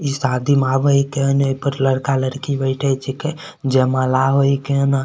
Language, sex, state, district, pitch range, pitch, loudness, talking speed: Maithili, male, Bihar, Supaul, 135-140 Hz, 135 Hz, -18 LUFS, 165 wpm